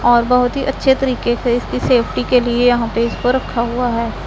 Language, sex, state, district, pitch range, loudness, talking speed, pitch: Hindi, female, Punjab, Pathankot, 240-250 Hz, -16 LUFS, 240 wpm, 245 Hz